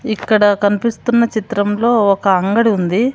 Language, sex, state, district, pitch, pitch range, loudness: Telugu, female, Andhra Pradesh, Sri Satya Sai, 215 Hz, 205-230 Hz, -14 LUFS